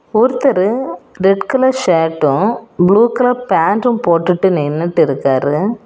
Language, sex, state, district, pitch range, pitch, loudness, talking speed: Tamil, female, Tamil Nadu, Kanyakumari, 170-235 Hz, 195 Hz, -14 LUFS, 100 wpm